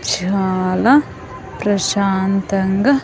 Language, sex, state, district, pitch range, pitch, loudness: Telugu, female, Andhra Pradesh, Sri Satya Sai, 190-205 Hz, 195 Hz, -16 LUFS